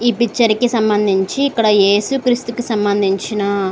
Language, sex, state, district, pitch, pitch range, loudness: Telugu, female, Andhra Pradesh, Srikakulam, 215 Hz, 200-240 Hz, -15 LUFS